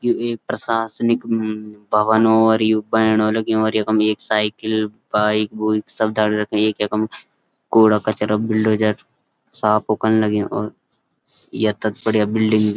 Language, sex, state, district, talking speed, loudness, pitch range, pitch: Garhwali, male, Uttarakhand, Uttarkashi, 145 wpm, -18 LUFS, 105-110 Hz, 110 Hz